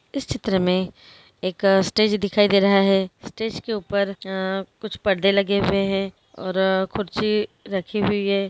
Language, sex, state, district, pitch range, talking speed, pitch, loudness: Hindi, female, Andhra Pradesh, Krishna, 190-205 Hz, 155 wpm, 195 Hz, -22 LUFS